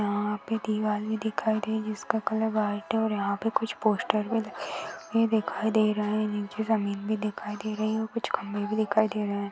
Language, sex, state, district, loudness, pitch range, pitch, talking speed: Hindi, female, Maharashtra, Aurangabad, -28 LUFS, 210-220 Hz, 215 Hz, 240 wpm